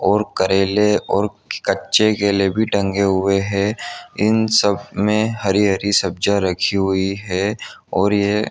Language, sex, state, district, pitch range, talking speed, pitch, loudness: Hindi, male, Jharkhand, Jamtara, 95-105 Hz, 140 wpm, 100 Hz, -18 LUFS